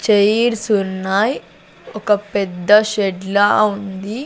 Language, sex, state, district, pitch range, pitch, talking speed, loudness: Telugu, female, Andhra Pradesh, Sri Satya Sai, 195-215 Hz, 205 Hz, 100 wpm, -16 LUFS